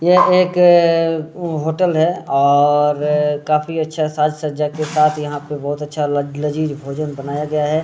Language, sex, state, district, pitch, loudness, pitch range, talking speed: Hindi, male, Bihar, Muzaffarpur, 150 Hz, -17 LUFS, 145-160 Hz, 155 wpm